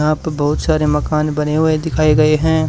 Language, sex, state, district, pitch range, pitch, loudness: Hindi, male, Haryana, Charkhi Dadri, 150-155 Hz, 155 Hz, -15 LUFS